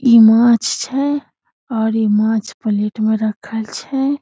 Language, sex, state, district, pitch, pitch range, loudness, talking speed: Maithili, female, Bihar, Samastipur, 225 Hz, 220-255 Hz, -16 LUFS, 140 wpm